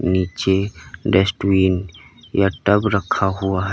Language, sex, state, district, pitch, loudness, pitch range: Hindi, male, Uttar Pradesh, Lalitpur, 95 Hz, -19 LUFS, 95-100 Hz